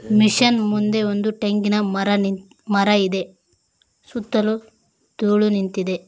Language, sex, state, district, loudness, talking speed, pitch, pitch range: Kannada, female, Karnataka, Koppal, -19 LUFS, 110 wpm, 205 Hz, 190-215 Hz